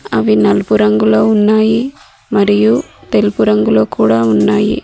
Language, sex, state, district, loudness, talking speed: Telugu, female, Telangana, Mahabubabad, -12 LUFS, 110 wpm